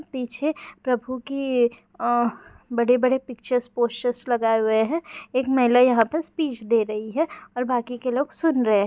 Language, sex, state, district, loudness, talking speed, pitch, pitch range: Hindi, female, Bihar, Darbhanga, -23 LUFS, 170 wpm, 250 Hz, 235-270 Hz